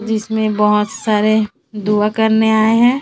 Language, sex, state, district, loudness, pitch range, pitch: Hindi, female, Chhattisgarh, Raipur, -15 LUFS, 210-220 Hz, 220 Hz